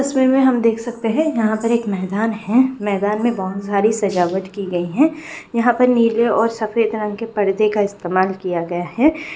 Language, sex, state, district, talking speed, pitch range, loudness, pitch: Hindi, female, Bihar, Bhagalpur, 205 wpm, 200-240 Hz, -18 LUFS, 220 Hz